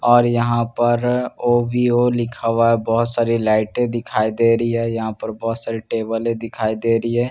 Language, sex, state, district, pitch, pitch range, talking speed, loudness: Hindi, male, Bihar, Katihar, 115 Hz, 115-120 Hz, 205 wpm, -19 LUFS